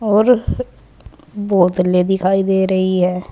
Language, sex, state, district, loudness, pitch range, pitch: Hindi, female, Uttar Pradesh, Saharanpur, -15 LUFS, 180-205 Hz, 190 Hz